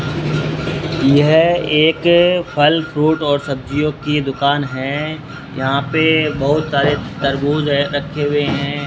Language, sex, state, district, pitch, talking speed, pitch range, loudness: Hindi, male, Rajasthan, Bikaner, 145 Hz, 120 wpm, 140-155 Hz, -16 LUFS